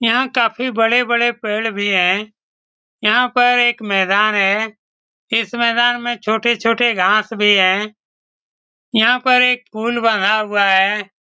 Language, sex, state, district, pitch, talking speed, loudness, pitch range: Hindi, male, Bihar, Saran, 225 Hz, 135 wpm, -15 LUFS, 210-240 Hz